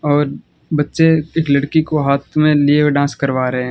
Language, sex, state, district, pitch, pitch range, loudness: Hindi, male, Rajasthan, Bikaner, 145 Hz, 140-155 Hz, -15 LUFS